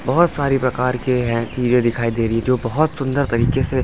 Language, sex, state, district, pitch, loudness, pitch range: Hindi, male, Delhi, New Delhi, 125 Hz, -19 LUFS, 120-135 Hz